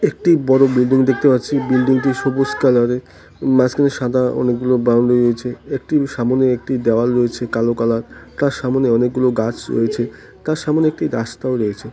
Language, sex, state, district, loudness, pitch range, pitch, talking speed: Bengali, male, West Bengal, Malda, -17 LUFS, 120-135 Hz, 125 Hz, 155 wpm